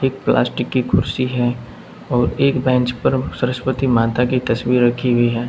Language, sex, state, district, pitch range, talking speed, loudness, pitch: Hindi, male, Uttar Pradesh, Saharanpur, 120-130 Hz, 175 wpm, -18 LUFS, 125 Hz